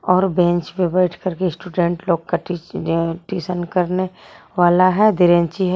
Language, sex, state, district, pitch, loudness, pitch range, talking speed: Hindi, female, Jharkhand, Garhwa, 180 Hz, -18 LUFS, 175-185 Hz, 155 wpm